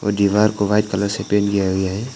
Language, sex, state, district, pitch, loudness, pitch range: Hindi, male, Arunachal Pradesh, Papum Pare, 100 Hz, -18 LUFS, 100-105 Hz